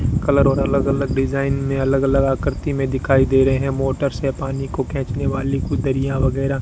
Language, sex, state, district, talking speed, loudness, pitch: Hindi, male, Rajasthan, Bikaner, 200 wpm, -19 LUFS, 135 Hz